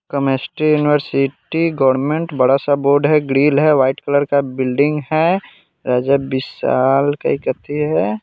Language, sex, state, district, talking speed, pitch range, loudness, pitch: Hindi, male, Bihar, Vaishali, 140 wpm, 135-150 Hz, -16 LUFS, 140 Hz